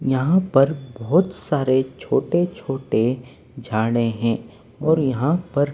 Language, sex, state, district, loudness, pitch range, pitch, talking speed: Hindi, male, Maharashtra, Mumbai Suburban, -21 LUFS, 120-155 Hz, 135 Hz, 105 wpm